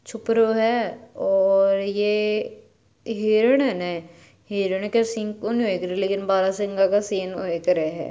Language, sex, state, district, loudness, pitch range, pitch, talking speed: Marwari, female, Rajasthan, Churu, -22 LUFS, 190-225 Hz, 205 Hz, 150 wpm